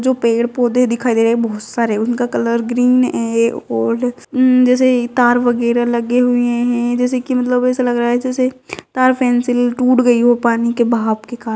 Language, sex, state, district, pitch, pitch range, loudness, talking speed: Magahi, female, Bihar, Gaya, 245 Hz, 235-250 Hz, -15 LUFS, 190 wpm